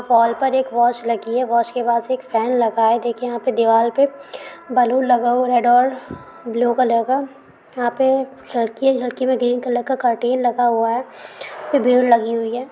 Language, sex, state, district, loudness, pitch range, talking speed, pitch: Hindi, female, Bihar, Kishanganj, -18 LUFS, 235-255 Hz, 205 wpm, 245 Hz